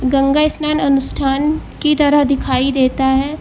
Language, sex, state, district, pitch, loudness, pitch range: Hindi, female, Uttar Pradesh, Lucknow, 275 Hz, -15 LUFS, 270-300 Hz